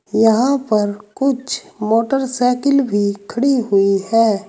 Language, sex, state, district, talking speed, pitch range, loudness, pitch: Hindi, male, Uttar Pradesh, Saharanpur, 105 wpm, 205-265 Hz, -17 LUFS, 225 Hz